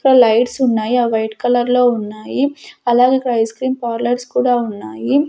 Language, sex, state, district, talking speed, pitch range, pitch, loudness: Telugu, female, Andhra Pradesh, Sri Satya Sai, 145 wpm, 225-255 Hz, 245 Hz, -16 LUFS